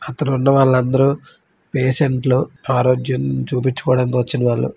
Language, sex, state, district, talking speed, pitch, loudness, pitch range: Telugu, male, Andhra Pradesh, Srikakulam, 125 wpm, 130 Hz, -17 LUFS, 125-135 Hz